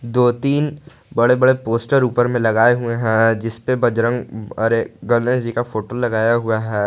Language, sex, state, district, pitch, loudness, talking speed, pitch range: Hindi, male, Jharkhand, Garhwa, 120 Hz, -18 LUFS, 185 wpm, 115-125 Hz